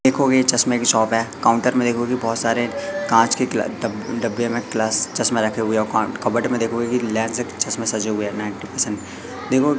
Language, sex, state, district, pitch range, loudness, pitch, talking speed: Hindi, male, Madhya Pradesh, Katni, 110-125 Hz, -20 LUFS, 115 Hz, 215 wpm